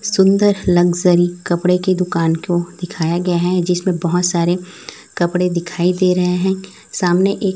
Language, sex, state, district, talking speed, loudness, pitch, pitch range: Hindi, female, Chhattisgarh, Raipur, 150 wpm, -16 LUFS, 180 Hz, 175-185 Hz